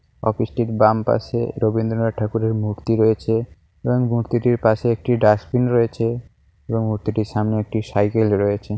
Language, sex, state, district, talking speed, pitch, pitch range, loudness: Bengali, male, West Bengal, Paschim Medinipur, 135 wpm, 110 Hz, 105-115 Hz, -20 LUFS